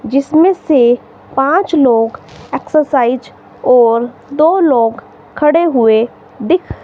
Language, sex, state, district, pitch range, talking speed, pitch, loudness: Hindi, female, Himachal Pradesh, Shimla, 240-315 Hz, 95 wpm, 270 Hz, -12 LUFS